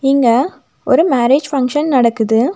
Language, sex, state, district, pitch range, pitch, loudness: Tamil, female, Tamil Nadu, Nilgiris, 235-275 Hz, 260 Hz, -14 LUFS